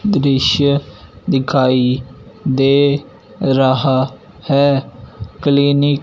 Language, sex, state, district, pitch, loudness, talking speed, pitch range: Hindi, male, Punjab, Fazilka, 140 Hz, -15 LUFS, 70 wpm, 130-140 Hz